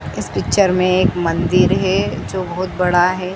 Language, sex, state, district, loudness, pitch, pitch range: Hindi, female, Madhya Pradesh, Dhar, -16 LUFS, 180 Hz, 170-185 Hz